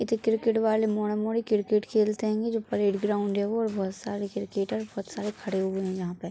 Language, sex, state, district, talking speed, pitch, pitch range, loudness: Hindi, female, Bihar, East Champaran, 210 wpm, 210 Hz, 200-220 Hz, -28 LUFS